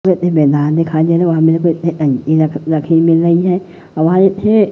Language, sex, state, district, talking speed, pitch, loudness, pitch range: Hindi, male, Madhya Pradesh, Katni, 190 wpm, 165 Hz, -13 LUFS, 155-175 Hz